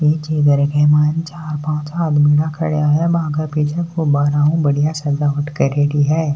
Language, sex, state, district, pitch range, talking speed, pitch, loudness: Hindi, male, Rajasthan, Nagaur, 145-155 Hz, 180 wpm, 150 Hz, -16 LUFS